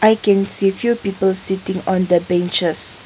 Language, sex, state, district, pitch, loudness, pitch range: English, female, Nagaland, Kohima, 190 Hz, -17 LUFS, 175-195 Hz